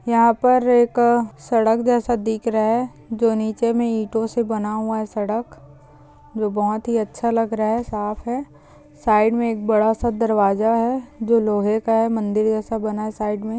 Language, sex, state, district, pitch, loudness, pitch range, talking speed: Hindi, female, Maharashtra, Solapur, 225 Hz, -20 LUFS, 215-235 Hz, 185 wpm